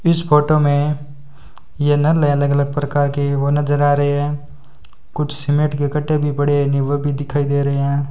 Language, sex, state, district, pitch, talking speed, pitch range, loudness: Hindi, male, Rajasthan, Bikaner, 145 Hz, 215 wpm, 140-145 Hz, -17 LUFS